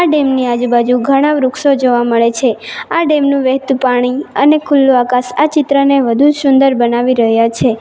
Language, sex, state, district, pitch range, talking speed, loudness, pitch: Gujarati, female, Gujarat, Valsad, 245-280 Hz, 175 wpm, -12 LUFS, 265 Hz